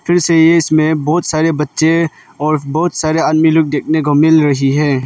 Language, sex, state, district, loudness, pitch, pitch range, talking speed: Hindi, male, Arunachal Pradesh, Lower Dibang Valley, -13 LUFS, 155 Hz, 150-160 Hz, 200 wpm